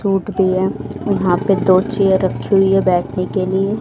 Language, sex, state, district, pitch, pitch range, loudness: Hindi, female, Haryana, Rohtak, 190 Hz, 185-195 Hz, -16 LUFS